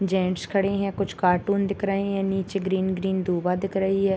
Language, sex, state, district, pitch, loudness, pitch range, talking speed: Hindi, male, Bihar, Bhagalpur, 195 Hz, -25 LUFS, 190-195 Hz, 215 wpm